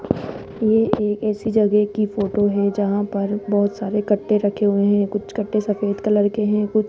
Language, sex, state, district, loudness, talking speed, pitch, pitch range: Hindi, female, Rajasthan, Jaipur, -20 LUFS, 200 wpm, 205 Hz, 205-215 Hz